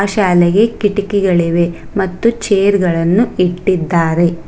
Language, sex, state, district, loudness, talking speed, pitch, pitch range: Kannada, female, Karnataka, Bangalore, -13 LUFS, 65 wpm, 185 Hz, 170-205 Hz